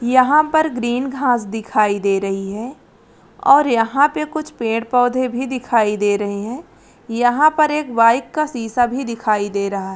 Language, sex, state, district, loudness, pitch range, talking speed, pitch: Hindi, female, Bihar, Araria, -17 LUFS, 215-275 Hz, 175 wpm, 245 Hz